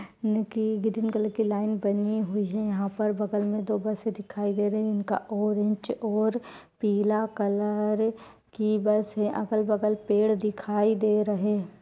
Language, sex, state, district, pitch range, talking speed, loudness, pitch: Hindi, female, Uttar Pradesh, Etah, 205-215 Hz, 160 wpm, -27 LUFS, 210 Hz